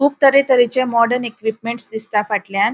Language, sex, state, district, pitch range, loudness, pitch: Konkani, female, Goa, North and South Goa, 215-255 Hz, -17 LUFS, 235 Hz